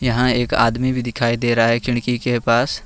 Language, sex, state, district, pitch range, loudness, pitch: Hindi, male, Jharkhand, Ranchi, 120-125 Hz, -18 LUFS, 120 Hz